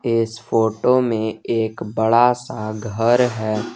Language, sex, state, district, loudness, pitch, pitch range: Hindi, male, Jharkhand, Garhwa, -19 LUFS, 115 Hz, 110-120 Hz